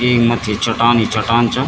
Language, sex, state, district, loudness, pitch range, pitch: Garhwali, male, Uttarakhand, Tehri Garhwal, -15 LUFS, 115-120 Hz, 120 Hz